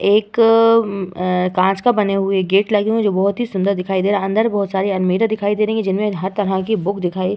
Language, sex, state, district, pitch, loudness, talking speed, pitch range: Hindi, female, Uttar Pradesh, Varanasi, 200 Hz, -17 LUFS, 250 wpm, 190-215 Hz